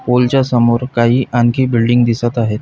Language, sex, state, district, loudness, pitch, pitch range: Marathi, male, Maharashtra, Pune, -13 LUFS, 120 Hz, 120-125 Hz